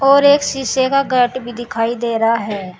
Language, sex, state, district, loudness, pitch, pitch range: Hindi, female, Uttar Pradesh, Saharanpur, -16 LUFS, 245 Hz, 225-270 Hz